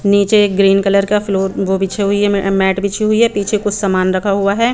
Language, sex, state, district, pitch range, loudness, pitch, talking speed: Hindi, female, Chandigarh, Chandigarh, 195-205 Hz, -14 LUFS, 200 Hz, 255 wpm